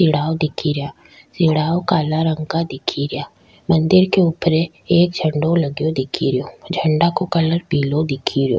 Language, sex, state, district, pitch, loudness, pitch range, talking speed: Rajasthani, female, Rajasthan, Nagaur, 160 Hz, -18 LUFS, 150-170 Hz, 160 wpm